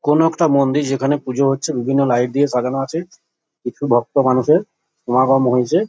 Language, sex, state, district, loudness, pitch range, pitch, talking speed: Bengali, male, West Bengal, Jhargram, -17 LUFS, 130-150 Hz, 135 Hz, 165 wpm